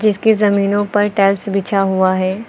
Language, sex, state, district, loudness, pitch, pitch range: Hindi, female, Uttar Pradesh, Lucknow, -15 LUFS, 200 Hz, 195-205 Hz